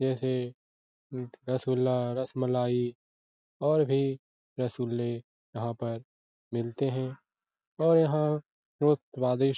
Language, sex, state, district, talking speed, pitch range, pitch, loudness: Hindi, male, Bihar, Lakhisarai, 95 wpm, 120-135 Hz, 125 Hz, -30 LUFS